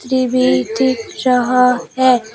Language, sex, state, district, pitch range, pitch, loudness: Hindi, female, Uttar Pradesh, Shamli, 245-255 Hz, 250 Hz, -15 LUFS